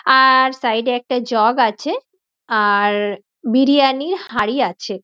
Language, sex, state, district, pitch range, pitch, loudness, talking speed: Bengali, female, West Bengal, Dakshin Dinajpur, 210-265 Hz, 245 Hz, -16 LUFS, 120 wpm